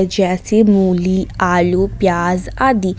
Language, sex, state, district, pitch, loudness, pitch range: Hindi, female, Jharkhand, Ranchi, 185 Hz, -15 LUFS, 180-195 Hz